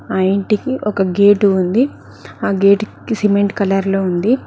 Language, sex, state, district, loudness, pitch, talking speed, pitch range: Telugu, female, Telangana, Mahabubabad, -15 LUFS, 200 Hz, 160 wpm, 195-210 Hz